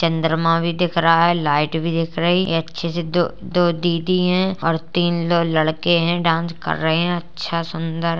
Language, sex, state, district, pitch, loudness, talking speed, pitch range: Hindi, female, Uttar Pradesh, Jalaun, 170 Hz, -19 LUFS, 210 wpm, 165-175 Hz